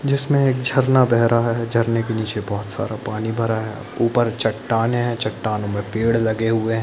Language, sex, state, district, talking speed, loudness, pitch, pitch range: Hindi, male, Chhattisgarh, Bilaspur, 200 wpm, -20 LUFS, 115 Hz, 110-120 Hz